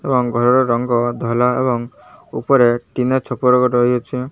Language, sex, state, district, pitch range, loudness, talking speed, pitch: Odia, male, Odisha, Malkangiri, 120-125 Hz, -16 LUFS, 140 wpm, 125 Hz